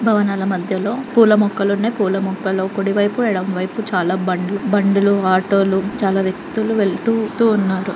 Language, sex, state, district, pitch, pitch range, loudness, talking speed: Telugu, female, Andhra Pradesh, Guntur, 200 Hz, 190-215 Hz, -17 LUFS, 145 wpm